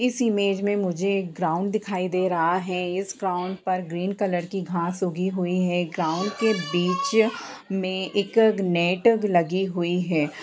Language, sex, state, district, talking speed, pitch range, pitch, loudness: Hindi, female, Jharkhand, Sahebganj, 180 wpm, 180-200 Hz, 185 Hz, -24 LUFS